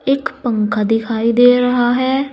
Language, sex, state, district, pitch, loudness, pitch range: Hindi, female, Uttar Pradesh, Saharanpur, 245 Hz, -15 LUFS, 225-260 Hz